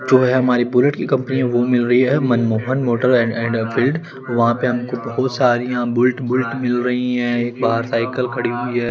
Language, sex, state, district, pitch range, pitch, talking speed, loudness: Hindi, male, Chandigarh, Chandigarh, 120-130 Hz, 125 Hz, 210 wpm, -18 LUFS